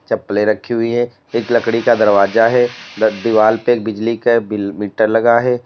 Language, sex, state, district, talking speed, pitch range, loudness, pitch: Hindi, male, Uttar Pradesh, Lalitpur, 200 wpm, 110-120 Hz, -15 LUFS, 115 Hz